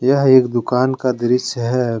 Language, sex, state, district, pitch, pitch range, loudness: Hindi, male, Jharkhand, Deoghar, 125 Hz, 120-130 Hz, -16 LUFS